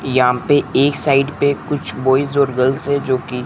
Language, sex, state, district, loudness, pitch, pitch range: Hindi, male, Rajasthan, Bikaner, -16 LUFS, 135 Hz, 130-140 Hz